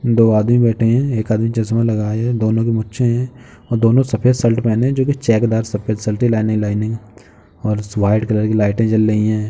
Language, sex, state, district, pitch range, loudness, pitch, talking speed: Hindi, male, Uttar Pradesh, Jalaun, 110-120 Hz, -16 LUFS, 115 Hz, 220 wpm